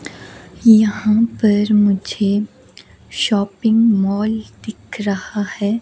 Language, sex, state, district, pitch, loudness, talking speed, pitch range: Hindi, female, Himachal Pradesh, Shimla, 210 Hz, -16 LUFS, 80 wpm, 200-220 Hz